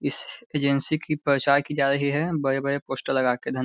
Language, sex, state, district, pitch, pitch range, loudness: Hindi, male, Bihar, Sitamarhi, 140 Hz, 135-150 Hz, -24 LUFS